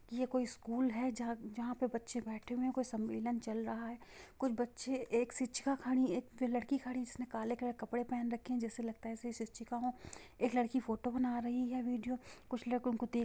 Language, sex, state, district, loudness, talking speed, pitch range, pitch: Hindi, female, Bihar, Sitamarhi, -39 LUFS, 225 wpm, 235-250 Hz, 245 Hz